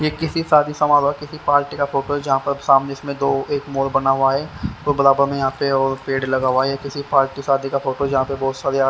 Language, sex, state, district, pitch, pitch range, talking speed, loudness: Hindi, male, Haryana, Rohtak, 140 Hz, 135-145 Hz, 270 wpm, -19 LUFS